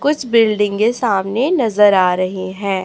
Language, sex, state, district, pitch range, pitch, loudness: Hindi, female, Chhattisgarh, Raipur, 190-230 Hz, 205 Hz, -15 LUFS